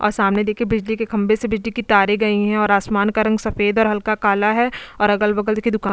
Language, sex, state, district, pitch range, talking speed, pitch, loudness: Hindi, female, Goa, North and South Goa, 205-220 Hz, 275 wpm, 215 Hz, -18 LUFS